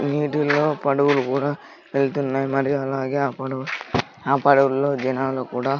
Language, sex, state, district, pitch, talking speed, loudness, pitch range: Telugu, male, Andhra Pradesh, Sri Satya Sai, 140 Hz, 125 wpm, -22 LUFS, 135-140 Hz